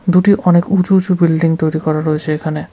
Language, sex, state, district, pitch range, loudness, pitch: Bengali, male, West Bengal, Cooch Behar, 155-185 Hz, -14 LUFS, 165 Hz